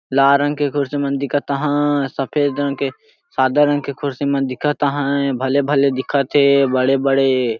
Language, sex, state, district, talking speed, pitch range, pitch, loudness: Sadri, male, Chhattisgarh, Jashpur, 190 wpm, 135-145 Hz, 140 Hz, -18 LUFS